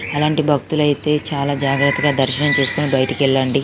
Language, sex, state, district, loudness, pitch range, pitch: Telugu, female, Telangana, Karimnagar, -17 LUFS, 135-150 Hz, 140 Hz